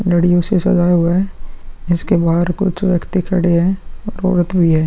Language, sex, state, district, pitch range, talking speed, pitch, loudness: Hindi, female, Bihar, Vaishali, 175-190 Hz, 175 wpm, 180 Hz, -15 LUFS